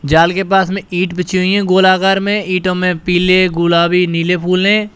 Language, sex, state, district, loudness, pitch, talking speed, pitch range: Hindi, male, Uttar Pradesh, Shamli, -13 LUFS, 185 Hz, 205 wpm, 180-190 Hz